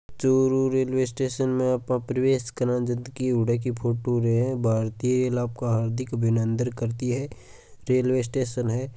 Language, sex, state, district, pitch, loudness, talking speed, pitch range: Marwari, male, Rajasthan, Churu, 125 Hz, -25 LUFS, 155 wpm, 120-130 Hz